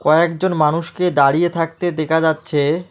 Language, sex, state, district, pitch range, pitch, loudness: Bengali, male, West Bengal, Alipurduar, 155-175 Hz, 165 Hz, -17 LUFS